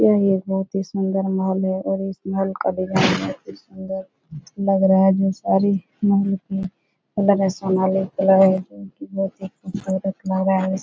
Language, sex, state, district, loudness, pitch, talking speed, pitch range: Hindi, female, Uttar Pradesh, Etah, -21 LUFS, 190 Hz, 150 wpm, 190-195 Hz